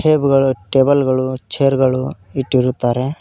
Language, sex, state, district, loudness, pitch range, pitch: Kannada, male, Karnataka, Koppal, -16 LUFS, 130-140 Hz, 135 Hz